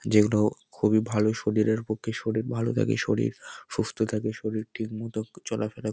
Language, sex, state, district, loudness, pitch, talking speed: Bengali, male, West Bengal, North 24 Parganas, -27 LUFS, 110 Hz, 140 wpm